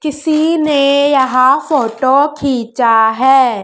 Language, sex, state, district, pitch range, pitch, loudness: Hindi, male, Madhya Pradesh, Dhar, 255-295 Hz, 270 Hz, -12 LUFS